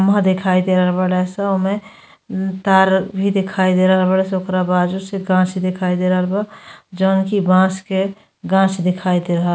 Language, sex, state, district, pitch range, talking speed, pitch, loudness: Bhojpuri, female, Uttar Pradesh, Gorakhpur, 185-195 Hz, 195 wpm, 190 Hz, -17 LUFS